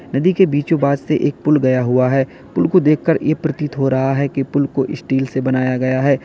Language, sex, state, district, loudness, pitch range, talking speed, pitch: Hindi, male, Uttar Pradesh, Lalitpur, -17 LUFS, 130-150 Hz, 250 wpm, 135 Hz